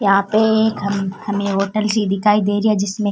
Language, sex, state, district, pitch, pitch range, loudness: Rajasthani, female, Rajasthan, Churu, 205 Hz, 200-215 Hz, -17 LUFS